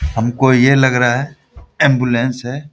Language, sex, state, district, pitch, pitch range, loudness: Hindi, male, Bihar, Samastipur, 125 Hz, 120-140 Hz, -14 LUFS